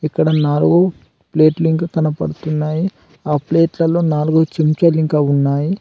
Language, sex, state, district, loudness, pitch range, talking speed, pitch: Telugu, male, Telangana, Adilabad, -16 LUFS, 150-165 Hz, 115 wpm, 155 Hz